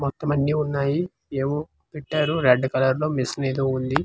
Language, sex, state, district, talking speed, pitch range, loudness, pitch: Telugu, male, Andhra Pradesh, Manyam, 165 wpm, 135-150 Hz, -23 LUFS, 140 Hz